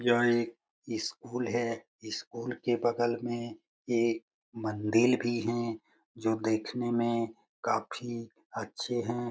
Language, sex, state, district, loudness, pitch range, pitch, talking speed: Hindi, male, Bihar, Jamui, -32 LUFS, 115-120 Hz, 120 Hz, 130 wpm